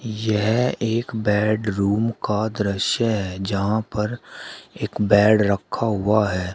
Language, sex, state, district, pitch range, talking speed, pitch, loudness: Hindi, male, Uttar Pradesh, Shamli, 100-110 Hz, 120 wpm, 105 Hz, -21 LUFS